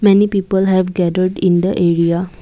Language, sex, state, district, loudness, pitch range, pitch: English, female, Assam, Kamrup Metropolitan, -15 LUFS, 175-195 Hz, 185 Hz